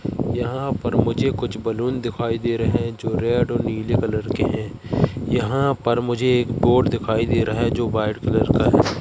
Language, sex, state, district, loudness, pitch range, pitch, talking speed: Hindi, male, Madhya Pradesh, Katni, -21 LUFS, 115-120 Hz, 120 Hz, 200 wpm